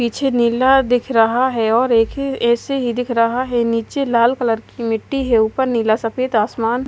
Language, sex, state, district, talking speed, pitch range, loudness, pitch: Hindi, female, Haryana, Charkhi Dadri, 200 wpm, 230-260 Hz, -17 LUFS, 235 Hz